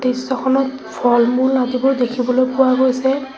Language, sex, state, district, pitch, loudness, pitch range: Assamese, female, Assam, Sonitpur, 255 Hz, -16 LUFS, 250-265 Hz